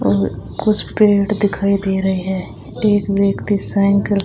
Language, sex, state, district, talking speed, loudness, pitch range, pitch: Hindi, female, Rajasthan, Bikaner, 155 wpm, -17 LUFS, 190-205 Hz, 200 Hz